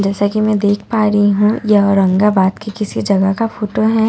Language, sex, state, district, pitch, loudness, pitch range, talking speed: Hindi, female, Bihar, Katihar, 210 Hz, -14 LUFS, 200-215 Hz, 265 wpm